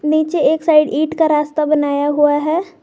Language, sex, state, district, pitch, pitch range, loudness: Hindi, female, Jharkhand, Garhwa, 305 Hz, 295-315 Hz, -15 LUFS